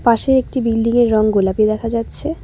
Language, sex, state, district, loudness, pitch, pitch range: Bengali, female, West Bengal, Cooch Behar, -16 LUFS, 230 Hz, 215-245 Hz